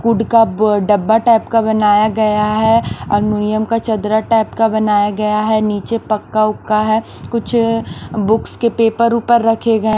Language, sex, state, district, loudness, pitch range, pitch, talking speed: Hindi, female, Maharashtra, Washim, -14 LUFS, 210-225 Hz, 220 Hz, 175 wpm